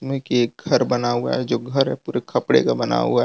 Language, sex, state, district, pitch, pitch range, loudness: Hindi, male, Gujarat, Valsad, 120 Hz, 120-130 Hz, -20 LUFS